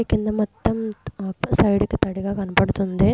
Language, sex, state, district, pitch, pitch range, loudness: Telugu, female, Andhra Pradesh, Guntur, 200 Hz, 190-215 Hz, -22 LUFS